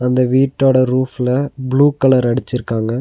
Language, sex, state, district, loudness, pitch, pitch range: Tamil, male, Tamil Nadu, Nilgiris, -15 LUFS, 130 Hz, 125-135 Hz